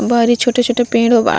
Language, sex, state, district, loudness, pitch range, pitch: Bhojpuri, female, Bihar, Gopalganj, -14 LUFS, 235-245 Hz, 240 Hz